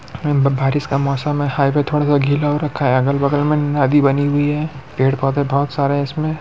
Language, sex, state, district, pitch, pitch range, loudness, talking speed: Hindi, male, Bihar, Muzaffarpur, 145 Hz, 140-145 Hz, -17 LUFS, 195 wpm